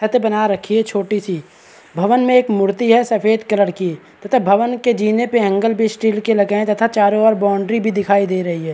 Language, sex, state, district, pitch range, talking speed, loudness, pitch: Hindi, male, Chhattisgarh, Balrampur, 200-225 Hz, 215 wpm, -16 LUFS, 215 Hz